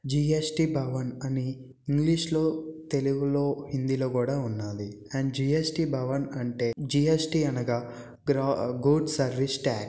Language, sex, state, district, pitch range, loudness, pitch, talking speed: Telugu, male, Andhra Pradesh, Visakhapatnam, 130-150 Hz, -28 LUFS, 135 Hz, 115 wpm